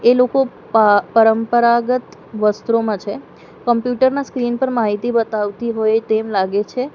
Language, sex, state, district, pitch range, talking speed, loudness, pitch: Gujarati, female, Gujarat, Valsad, 215-245 Hz, 140 wpm, -17 LUFS, 230 Hz